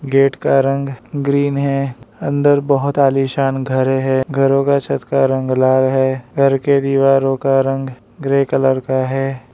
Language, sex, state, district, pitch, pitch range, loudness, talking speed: Hindi, male, Arunachal Pradesh, Lower Dibang Valley, 135 Hz, 130-140 Hz, -16 LUFS, 165 wpm